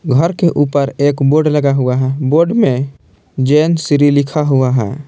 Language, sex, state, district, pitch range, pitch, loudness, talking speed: Hindi, male, Jharkhand, Palamu, 135-150 Hz, 145 Hz, -13 LUFS, 175 wpm